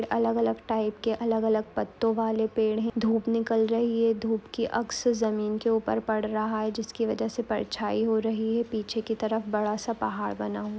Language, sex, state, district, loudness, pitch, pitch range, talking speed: Hindi, female, Maharashtra, Aurangabad, -28 LUFS, 225 Hz, 215-225 Hz, 210 wpm